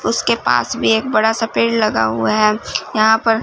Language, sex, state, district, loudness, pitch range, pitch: Hindi, female, Punjab, Fazilka, -16 LUFS, 215-225 Hz, 220 Hz